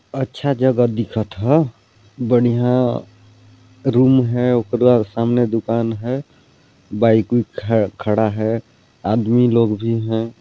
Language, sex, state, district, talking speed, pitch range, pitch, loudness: Chhattisgarhi, male, Chhattisgarh, Balrampur, 110 wpm, 110-125 Hz, 115 Hz, -18 LUFS